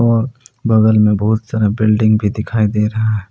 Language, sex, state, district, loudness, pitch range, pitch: Hindi, male, Jharkhand, Palamu, -15 LUFS, 105-115 Hz, 110 Hz